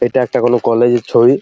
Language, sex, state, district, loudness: Bengali, male, West Bengal, Jalpaiguri, -13 LUFS